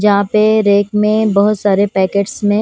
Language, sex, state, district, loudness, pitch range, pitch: Hindi, female, Punjab, Kapurthala, -13 LUFS, 200-215 Hz, 205 Hz